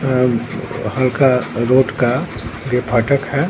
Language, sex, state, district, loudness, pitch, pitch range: Hindi, male, Bihar, Katihar, -17 LUFS, 125 Hz, 115-130 Hz